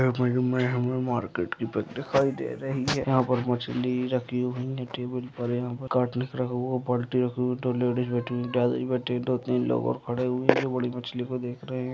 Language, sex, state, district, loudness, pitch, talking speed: Hindi, male, Bihar, Madhepura, -28 LUFS, 125 Hz, 200 wpm